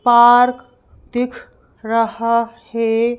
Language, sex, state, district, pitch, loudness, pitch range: Hindi, female, Madhya Pradesh, Bhopal, 235 Hz, -16 LUFS, 230-240 Hz